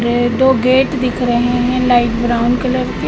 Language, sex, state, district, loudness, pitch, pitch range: Hindi, female, Madhya Pradesh, Katni, -14 LUFS, 245 Hz, 240-255 Hz